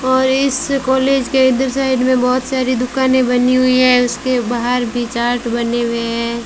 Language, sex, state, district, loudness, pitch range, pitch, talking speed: Hindi, female, Rajasthan, Bikaner, -15 LUFS, 240-260 Hz, 255 Hz, 185 wpm